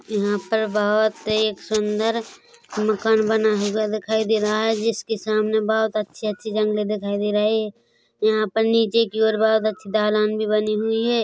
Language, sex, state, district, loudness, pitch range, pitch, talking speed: Hindi, female, Chhattisgarh, Korba, -21 LUFS, 215-220 Hz, 215 Hz, 180 wpm